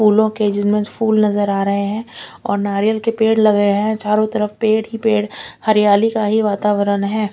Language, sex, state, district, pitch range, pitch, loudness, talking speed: Hindi, female, Chandigarh, Chandigarh, 205-220 Hz, 210 Hz, -16 LUFS, 170 wpm